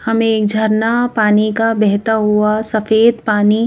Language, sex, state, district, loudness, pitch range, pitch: Hindi, female, Madhya Pradesh, Bhopal, -14 LUFS, 210-225 Hz, 220 Hz